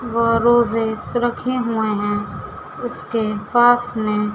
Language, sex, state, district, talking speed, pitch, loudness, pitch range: Hindi, female, Madhya Pradesh, Dhar, 110 wpm, 230 Hz, -19 LUFS, 210-240 Hz